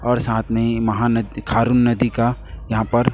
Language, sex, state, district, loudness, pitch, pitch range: Hindi, male, Chhattisgarh, Raipur, -19 LUFS, 115 Hz, 110-120 Hz